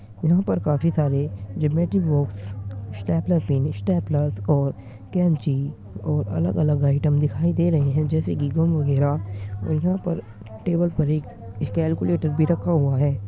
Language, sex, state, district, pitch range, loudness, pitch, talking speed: Hindi, male, Uttar Pradesh, Muzaffarnagar, 105-160 Hz, -23 LUFS, 145 Hz, 155 wpm